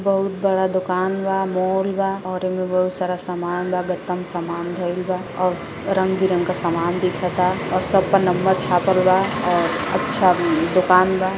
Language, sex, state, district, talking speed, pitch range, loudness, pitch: Bhojpuri, female, Uttar Pradesh, Gorakhpur, 165 wpm, 180-190 Hz, -20 LUFS, 185 Hz